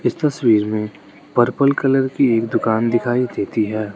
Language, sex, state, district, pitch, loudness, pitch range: Hindi, male, Arunachal Pradesh, Lower Dibang Valley, 120 Hz, -18 LUFS, 110-135 Hz